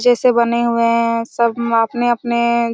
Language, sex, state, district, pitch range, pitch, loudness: Hindi, female, Chhattisgarh, Raigarh, 230-240 Hz, 235 Hz, -16 LUFS